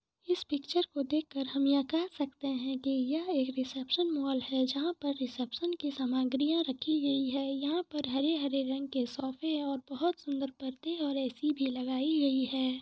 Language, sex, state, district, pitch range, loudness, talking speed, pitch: Hindi, female, Jharkhand, Sahebganj, 265-305 Hz, -33 LUFS, 180 wpm, 275 Hz